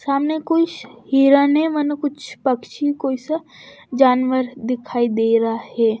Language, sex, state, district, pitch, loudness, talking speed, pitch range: Hindi, female, Bihar, West Champaran, 265 Hz, -19 LUFS, 130 wpm, 240-290 Hz